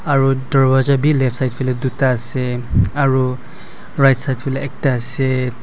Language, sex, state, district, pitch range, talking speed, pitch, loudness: Nagamese, male, Nagaland, Dimapur, 130-135 Hz, 150 wpm, 130 Hz, -17 LUFS